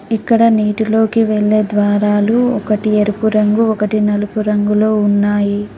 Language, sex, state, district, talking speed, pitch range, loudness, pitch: Telugu, female, Telangana, Mahabubabad, 115 wpm, 205-220 Hz, -14 LUFS, 210 Hz